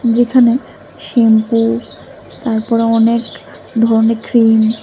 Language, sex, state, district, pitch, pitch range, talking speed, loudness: Bengali, female, Tripura, West Tripura, 230 Hz, 225-235 Hz, 85 wpm, -13 LUFS